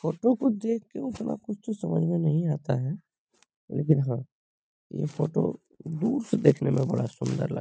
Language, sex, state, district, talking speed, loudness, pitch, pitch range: Hindi, male, Bihar, Lakhisarai, 190 wpm, -28 LUFS, 170 Hz, 155-225 Hz